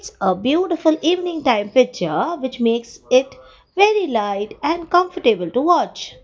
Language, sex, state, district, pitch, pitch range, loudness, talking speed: English, female, Gujarat, Valsad, 310 Hz, 235-355 Hz, -18 LUFS, 145 wpm